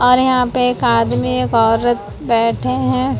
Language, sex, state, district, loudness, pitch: Hindi, female, Maharashtra, Mumbai Suburban, -15 LUFS, 225 Hz